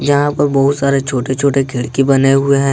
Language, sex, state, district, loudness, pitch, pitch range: Hindi, male, Jharkhand, Ranchi, -14 LUFS, 135 Hz, 135-140 Hz